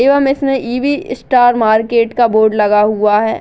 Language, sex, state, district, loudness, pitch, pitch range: Hindi, female, Bihar, Muzaffarpur, -12 LUFS, 235 Hz, 220-265 Hz